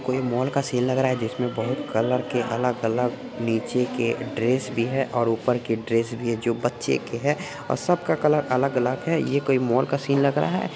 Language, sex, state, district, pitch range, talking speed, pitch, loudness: Hindi, male, Bihar, Supaul, 115-135 Hz, 230 wpm, 125 Hz, -24 LUFS